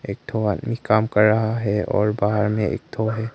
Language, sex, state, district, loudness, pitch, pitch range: Hindi, male, Arunachal Pradesh, Longding, -21 LUFS, 105 Hz, 105-110 Hz